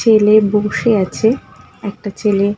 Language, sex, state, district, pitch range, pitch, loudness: Bengali, female, West Bengal, Malda, 205-220 Hz, 210 Hz, -15 LUFS